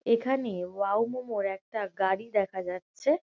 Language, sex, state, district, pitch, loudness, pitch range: Bengali, female, West Bengal, Kolkata, 205 Hz, -30 LUFS, 190-230 Hz